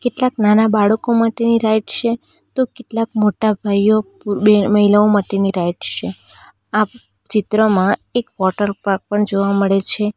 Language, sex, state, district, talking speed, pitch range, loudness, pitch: Gujarati, female, Gujarat, Valsad, 140 wpm, 200-225 Hz, -16 LUFS, 210 Hz